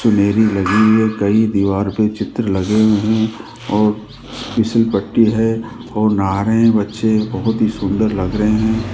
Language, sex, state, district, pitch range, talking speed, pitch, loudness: Hindi, male, Rajasthan, Jaipur, 105-110 Hz, 155 wpm, 110 Hz, -16 LUFS